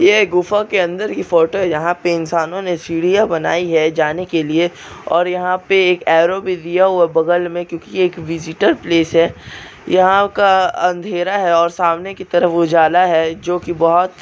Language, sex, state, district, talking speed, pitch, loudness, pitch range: Hindi, male, Andhra Pradesh, Chittoor, 200 wpm, 175 Hz, -15 LUFS, 165-185 Hz